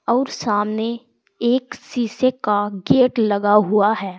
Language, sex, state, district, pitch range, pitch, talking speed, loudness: Hindi, female, Uttar Pradesh, Saharanpur, 205-240 Hz, 220 Hz, 130 wpm, -19 LUFS